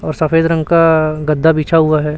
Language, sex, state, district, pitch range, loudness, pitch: Hindi, male, Chhattisgarh, Raipur, 155-165 Hz, -13 LUFS, 155 Hz